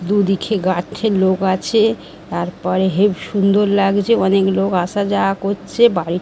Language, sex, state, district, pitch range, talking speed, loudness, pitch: Bengali, female, West Bengal, Dakshin Dinajpur, 185-205 Hz, 135 wpm, -16 LUFS, 195 Hz